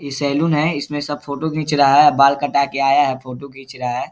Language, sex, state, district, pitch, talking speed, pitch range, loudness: Hindi, male, Bihar, Saharsa, 140 Hz, 260 wpm, 135-145 Hz, -17 LUFS